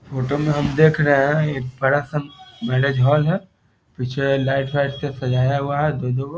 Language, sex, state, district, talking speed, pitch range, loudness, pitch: Hindi, male, Bihar, Muzaffarpur, 205 wpm, 135-150 Hz, -20 LUFS, 140 Hz